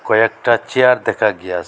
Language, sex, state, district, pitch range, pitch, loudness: Bengali, male, Assam, Hailakandi, 100-120 Hz, 110 Hz, -15 LUFS